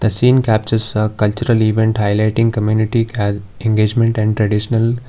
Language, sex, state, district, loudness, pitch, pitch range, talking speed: English, male, Karnataka, Bangalore, -15 LUFS, 110 Hz, 105-115 Hz, 130 wpm